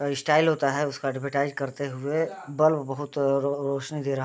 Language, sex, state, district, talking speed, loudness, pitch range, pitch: Hindi, male, Bihar, Gopalganj, 200 wpm, -26 LUFS, 140-150 Hz, 140 Hz